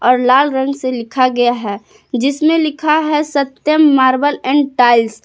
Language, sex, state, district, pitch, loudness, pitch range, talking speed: Hindi, female, Jharkhand, Palamu, 265 Hz, -13 LUFS, 250-300 Hz, 170 wpm